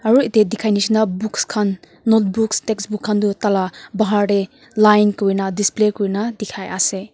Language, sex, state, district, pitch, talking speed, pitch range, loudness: Nagamese, female, Nagaland, Kohima, 210 Hz, 160 wpm, 200-220 Hz, -18 LUFS